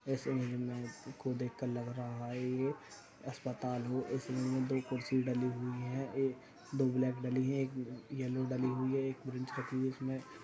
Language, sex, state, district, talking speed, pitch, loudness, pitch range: Hindi, male, Uttar Pradesh, Budaun, 180 wpm, 130 Hz, -38 LUFS, 125-130 Hz